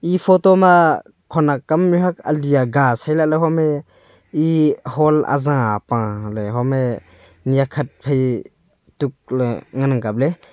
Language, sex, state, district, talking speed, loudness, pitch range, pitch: Wancho, male, Arunachal Pradesh, Longding, 125 wpm, -18 LUFS, 125-155 Hz, 140 Hz